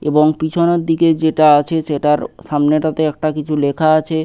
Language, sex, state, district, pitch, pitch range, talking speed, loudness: Bengali, male, West Bengal, Paschim Medinipur, 155 Hz, 150-160 Hz, 155 wpm, -15 LUFS